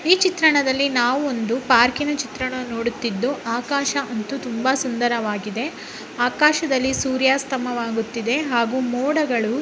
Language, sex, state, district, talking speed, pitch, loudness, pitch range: Kannada, female, Karnataka, Raichur, 105 wpm, 255 Hz, -21 LUFS, 235-280 Hz